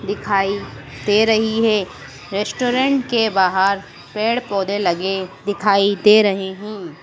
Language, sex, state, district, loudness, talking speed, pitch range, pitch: Hindi, female, Madhya Pradesh, Dhar, -18 LUFS, 120 wpm, 190-215 Hz, 200 Hz